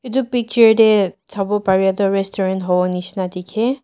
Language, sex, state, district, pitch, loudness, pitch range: Nagamese, female, Nagaland, Dimapur, 195 Hz, -17 LUFS, 190-225 Hz